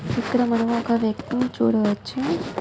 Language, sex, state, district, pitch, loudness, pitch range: Telugu, female, Telangana, Nalgonda, 235 Hz, -23 LUFS, 220-250 Hz